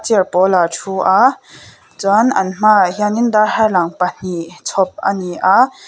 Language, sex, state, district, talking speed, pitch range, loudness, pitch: Mizo, female, Mizoram, Aizawl, 155 wpm, 180-215 Hz, -14 LUFS, 190 Hz